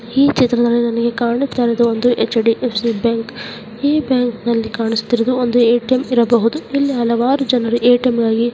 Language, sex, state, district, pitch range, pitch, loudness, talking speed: Kannada, female, Karnataka, Mysore, 230-250 Hz, 235 Hz, -16 LUFS, 145 wpm